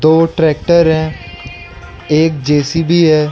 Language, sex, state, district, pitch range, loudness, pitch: Hindi, male, Arunachal Pradesh, Lower Dibang Valley, 150-165 Hz, -12 LUFS, 160 Hz